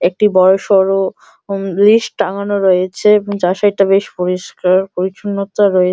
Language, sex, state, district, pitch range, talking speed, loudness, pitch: Bengali, male, West Bengal, Malda, 185-205 Hz, 130 wpm, -14 LUFS, 195 Hz